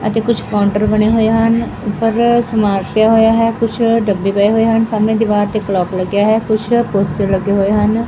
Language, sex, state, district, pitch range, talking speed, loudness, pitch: Punjabi, female, Punjab, Fazilka, 205-225 Hz, 200 wpm, -14 LUFS, 215 Hz